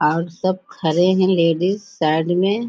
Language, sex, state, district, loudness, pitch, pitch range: Hindi, female, Bihar, Jahanabad, -19 LUFS, 180 Hz, 165-190 Hz